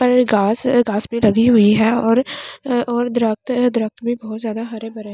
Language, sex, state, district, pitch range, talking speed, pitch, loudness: Hindi, female, Delhi, New Delhi, 220-245 Hz, 210 wpm, 230 Hz, -17 LUFS